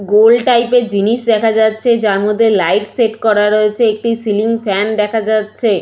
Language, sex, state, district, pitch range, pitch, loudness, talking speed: Bengali, female, West Bengal, Purulia, 210-230 Hz, 220 Hz, -13 LUFS, 175 wpm